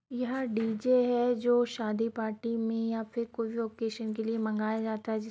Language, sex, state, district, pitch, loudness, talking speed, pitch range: Hindi, female, Bihar, Darbhanga, 225 Hz, -31 LUFS, 205 wpm, 220-240 Hz